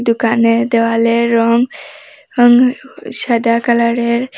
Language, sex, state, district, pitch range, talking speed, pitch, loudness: Bengali, female, Assam, Hailakandi, 230-250 Hz, 80 wpm, 235 Hz, -13 LUFS